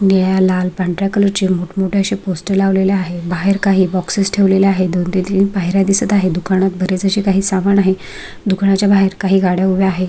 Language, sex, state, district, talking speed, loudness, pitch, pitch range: Marathi, female, Maharashtra, Sindhudurg, 200 wpm, -15 LUFS, 190 Hz, 185-195 Hz